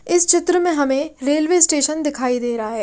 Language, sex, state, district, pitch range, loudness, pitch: Hindi, female, Haryana, Rohtak, 265-345 Hz, -17 LUFS, 295 Hz